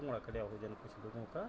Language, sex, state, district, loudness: Garhwali, male, Uttarakhand, Tehri Garhwal, -45 LUFS